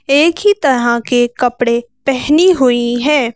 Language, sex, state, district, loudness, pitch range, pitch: Hindi, female, Madhya Pradesh, Bhopal, -13 LUFS, 240-300 Hz, 255 Hz